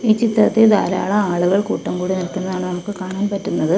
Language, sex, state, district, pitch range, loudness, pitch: Malayalam, female, Kerala, Kollam, 185-210 Hz, -18 LUFS, 195 Hz